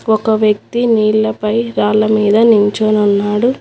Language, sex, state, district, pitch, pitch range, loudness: Telugu, female, Telangana, Hyderabad, 215 Hz, 210-225 Hz, -13 LUFS